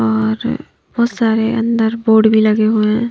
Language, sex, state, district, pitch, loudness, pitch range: Hindi, female, Maharashtra, Mumbai Suburban, 220 Hz, -14 LUFS, 215-230 Hz